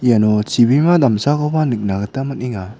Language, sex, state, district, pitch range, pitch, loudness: Garo, male, Meghalaya, West Garo Hills, 105-140 Hz, 125 Hz, -16 LUFS